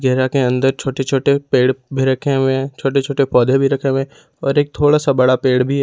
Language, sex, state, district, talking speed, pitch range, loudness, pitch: Hindi, male, Jharkhand, Ranchi, 215 wpm, 130-140 Hz, -16 LUFS, 135 Hz